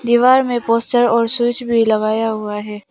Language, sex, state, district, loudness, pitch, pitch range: Hindi, female, Arunachal Pradesh, Papum Pare, -16 LUFS, 230 Hz, 215-240 Hz